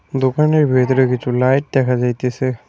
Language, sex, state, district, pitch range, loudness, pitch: Bengali, male, West Bengal, Cooch Behar, 125-135 Hz, -16 LUFS, 130 Hz